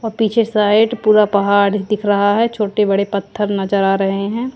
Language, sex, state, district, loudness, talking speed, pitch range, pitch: Hindi, female, Haryana, Jhajjar, -15 LUFS, 200 wpm, 200-220 Hz, 205 Hz